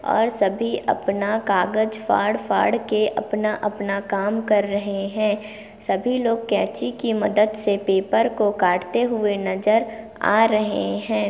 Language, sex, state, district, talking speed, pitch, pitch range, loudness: Hindi, female, Chhattisgarh, Kabirdham, 135 wpm, 210 Hz, 200-220 Hz, -21 LUFS